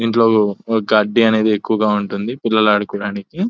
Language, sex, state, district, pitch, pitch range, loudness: Telugu, male, Telangana, Nalgonda, 110 Hz, 105-115 Hz, -16 LUFS